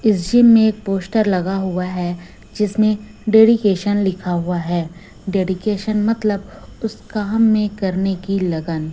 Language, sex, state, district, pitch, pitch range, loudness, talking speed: Hindi, female, Chhattisgarh, Raipur, 195 Hz, 180-215 Hz, -18 LUFS, 140 wpm